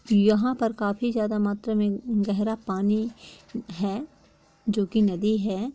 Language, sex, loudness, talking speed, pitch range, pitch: Hindi, female, -25 LUFS, 145 wpm, 205-225 Hz, 215 Hz